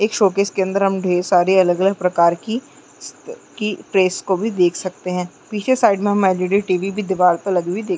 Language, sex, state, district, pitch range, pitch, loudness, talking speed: Chhattisgarhi, female, Chhattisgarh, Jashpur, 180-205 Hz, 190 Hz, -18 LUFS, 210 wpm